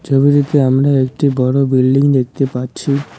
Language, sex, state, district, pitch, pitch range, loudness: Bengali, male, West Bengal, Cooch Behar, 135 Hz, 130-140 Hz, -14 LUFS